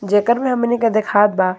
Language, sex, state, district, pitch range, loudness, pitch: Bhojpuri, female, Jharkhand, Palamu, 205-235 Hz, -16 LUFS, 215 Hz